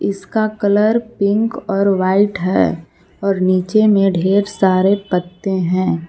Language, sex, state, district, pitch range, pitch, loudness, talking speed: Hindi, female, Jharkhand, Palamu, 185-205 Hz, 195 Hz, -16 LUFS, 130 wpm